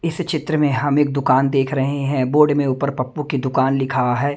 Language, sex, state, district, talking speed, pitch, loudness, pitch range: Hindi, male, Haryana, Jhajjar, 235 wpm, 140 Hz, -18 LUFS, 130-145 Hz